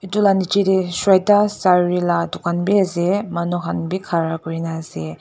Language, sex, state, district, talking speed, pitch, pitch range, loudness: Nagamese, female, Nagaland, Dimapur, 185 wpm, 180 Hz, 170-195 Hz, -18 LUFS